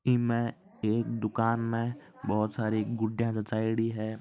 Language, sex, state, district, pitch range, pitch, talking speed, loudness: Marwari, male, Rajasthan, Nagaur, 110-115 Hz, 115 Hz, 130 wpm, -30 LUFS